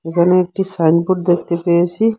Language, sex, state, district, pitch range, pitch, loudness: Bengali, female, Assam, Hailakandi, 170-185 Hz, 175 Hz, -15 LUFS